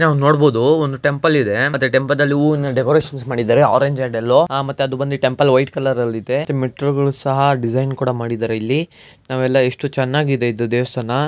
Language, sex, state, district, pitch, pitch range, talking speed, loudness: Kannada, male, Karnataka, Mysore, 135 Hz, 130-145 Hz, 55 wpm, -17 LUFS